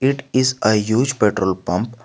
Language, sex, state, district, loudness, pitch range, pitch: English, male, Jharkhand, Garhwa, -18 LUFS, 105-130 Hz, 115 Hz